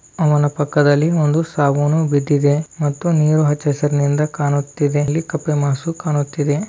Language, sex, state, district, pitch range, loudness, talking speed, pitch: Kannada, male, Karnataka, Dharwad, 145-155 Hz, -17 LUFS, 115 wpm, 145 Hz